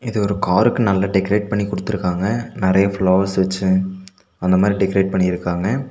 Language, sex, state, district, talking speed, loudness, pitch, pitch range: Tamil, male, Tamil Nadu, Nilgiris, 140 wpm, -18 LUFS, 95 Hz, 95-105 Hz